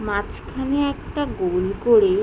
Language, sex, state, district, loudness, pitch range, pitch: Bengali, female, West Bengal, Jhargram, -22 LUFS, 205-300 Hz, 275 Hz